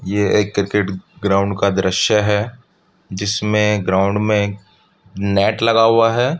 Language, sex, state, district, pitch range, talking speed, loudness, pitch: Hindi, male, Uttar Pradesh, Budaun, 100-105 Hz, 130 wpm, -17 LUFS, 100 Hz